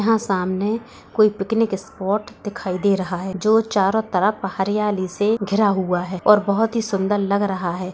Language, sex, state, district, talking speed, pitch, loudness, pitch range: Hindi, female, Uttar Pradesh, Budaun, 180 wpm, 205 Hz, -20 LUFS, 190-215 Hz